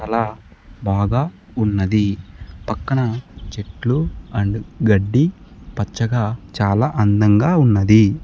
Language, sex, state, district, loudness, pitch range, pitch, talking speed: Telugu, male, Andhra Pradesh, Sri Satya Sai, -18 LUFS, 100-115 Hz, 105 Hz, 80 wpm